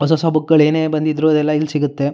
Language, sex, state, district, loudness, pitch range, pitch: Kannada, male, Karnataka, Shimoga, -16 LUFS, 150-155 Hz, 155 Hz